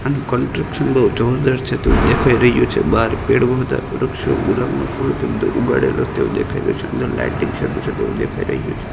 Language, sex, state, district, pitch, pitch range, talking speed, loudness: Gujarati, male, Gujarat, Gandhinagar, 130 Hz, 120-130 Hz, 170 wpm, -17 LUFS